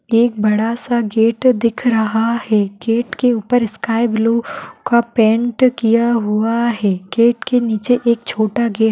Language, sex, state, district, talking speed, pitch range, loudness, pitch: Hindi, female, Maharashtra, Solapur, 160 wpm, 220-240 Hz, -16 LUFS, 230 Hz